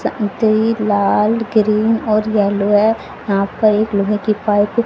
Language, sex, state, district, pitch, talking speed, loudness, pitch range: Hindi, female, Haryana, Charkhi Dadri, 215 Hz, 150 wpm, -15 LUFS, 205-220 Hz